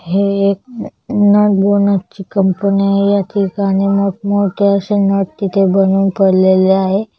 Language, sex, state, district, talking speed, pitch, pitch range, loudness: Marathi, female, Maharashtra, Chandrapur, 140 wpm, 200 Hz, 195-200 Hz, -13 LUFS